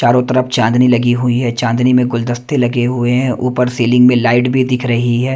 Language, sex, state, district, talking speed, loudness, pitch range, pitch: Hindi, male, Bihar, Katihar, 225 wpm, -13 LUFS, 120-125 Hz, 125 Hz